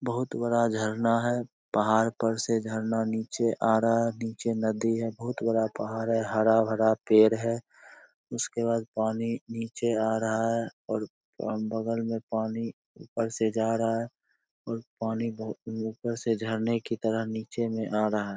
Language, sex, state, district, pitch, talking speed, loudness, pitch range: Hindi, male, Bihar, Begusarai, 115 Hz, 170 wpm, -28 LUFS, 110-115 Hz